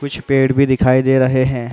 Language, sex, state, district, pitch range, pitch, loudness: Hindi, male, Uttar Pradesh, Muzaffarnagar, 130-135 Hz, 130 Hz, -14 LUFS